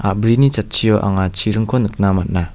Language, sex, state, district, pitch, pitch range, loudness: Garo, male, Meghalaya, West Garo Hills, 105 Hz, 95-110 Hz, -16 LUFS